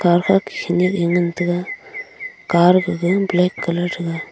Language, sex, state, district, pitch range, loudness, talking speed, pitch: Wancho, female, Arunachal Pradesh, Longding, 175-195 Hz, -18 LUFS, 150 wpm, 180 Hz